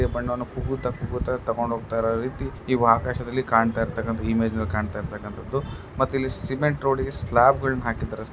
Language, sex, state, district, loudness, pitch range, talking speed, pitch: Kannada, male, Karnataka, Bellary, -25 LUFS, 115-130 Hz, 145 wpm, 120 Hz